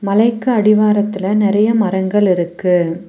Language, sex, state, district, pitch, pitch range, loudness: Tamil, female, Tamil Nadu, Nilgiris, 205 Hz, 190-215 Hz, -14 LUFS